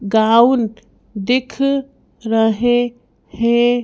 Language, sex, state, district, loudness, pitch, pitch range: Hindi, female, Madhya Pradesh, Bhopal, -16 LUFS, 235 Hz, 225-245 Hz